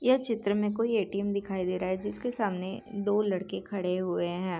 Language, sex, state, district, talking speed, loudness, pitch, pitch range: Hindi, female, Bihar, Darbhanga, 210 wpm, -30 LUFS, 200 Hz, 185-210 Hz